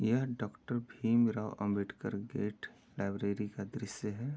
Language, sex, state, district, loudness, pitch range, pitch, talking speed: Hindi, male, Uttar Pradesh, Jyotiba Phule Nagar, -36 LUFS, 100-120 Hz, 105 Hz, 125 wpm